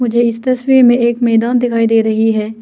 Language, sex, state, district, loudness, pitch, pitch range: Hindi, female, Arunachal Pradesh, Lower Dibang Valley, -12 LUFS, 235 Hz, 225-245 Hz